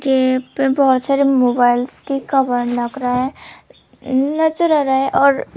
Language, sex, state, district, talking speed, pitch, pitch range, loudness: Hindi, female, Tripura, Unakoti, 160 wpm, 265 Hz, 250-275 Hz, -16 LUFS